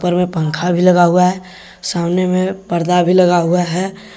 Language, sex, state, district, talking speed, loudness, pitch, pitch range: Hindi, male, Jharkhand, Deoghar, 200 wpm, -14 LUFS, 180 Hz, 175-185 Hz